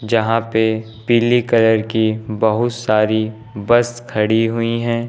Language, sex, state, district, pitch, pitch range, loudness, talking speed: Hindi, male, Uttar Pradesh, Lucknow, 110 Hz, 110-115 Hz, -17 LUFS, 130 wpm